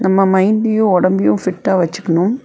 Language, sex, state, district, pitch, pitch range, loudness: Tamil, female, Tamil Nadu, Nilgiris, 190 Hz, 180-210 Hz, -14 LUFS